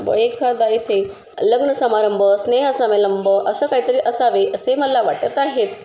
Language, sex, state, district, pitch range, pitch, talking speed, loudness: Marathi, female, Maharashtra, Sindhudurg, 205-270 Hz, 240 Hz, 155 wpm, -17 LUFS